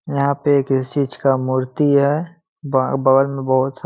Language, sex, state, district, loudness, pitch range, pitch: Hindi, male, Bihar, Muzaffarpur, -18 LUFS, 130-145 Hz, 135 Hz